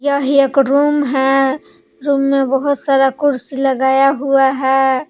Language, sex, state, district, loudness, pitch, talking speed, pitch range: Hindi, female, Jharkhand, Palamu, -14 LUFS, 275 Hz, 140 wpm, 270-280 Hz